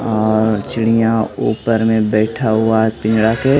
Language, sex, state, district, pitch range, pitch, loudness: Hindi, male, Bihar, Katihar, 110-115 Hz, 110 Hz, -15 LUFS